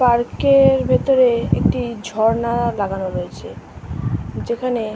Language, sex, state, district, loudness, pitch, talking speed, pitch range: Bengali, female, West Bengal, Kolkata, -18 LUFS, 235 Hz, 135 wpm, 200-240 Hz